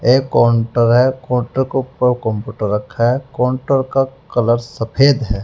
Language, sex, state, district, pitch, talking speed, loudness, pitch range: Hindi, male, Uttar Pradesh, Saharanpur, 125 Hz, 155 wpm, -16 LUFS, 115-130 Hz